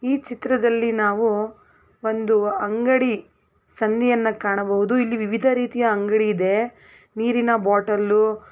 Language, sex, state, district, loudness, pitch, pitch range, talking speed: Kannada, female, Karnataka, Belgaum, -21 LUFS, 220 Hz, 210-240 Hz, 85 wpm